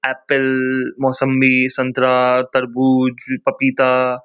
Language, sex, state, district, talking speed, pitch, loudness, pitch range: Hindi, male, West Bengal, Kolkata, 70 wpm, 130 Hz, -16 LUFS, 130-135 Hz